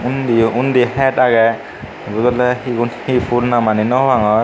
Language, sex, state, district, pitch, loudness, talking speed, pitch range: Chakma, male, Tripura, Unakoti, 120 Hz, -15 LUFS, 150 wpm, 115-125 Hz